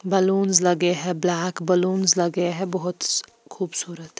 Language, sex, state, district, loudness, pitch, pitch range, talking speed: Hindi, female, Bihar, Patna, -22 LUFS, 180 Hz, 175-190 Hz, 130 wpm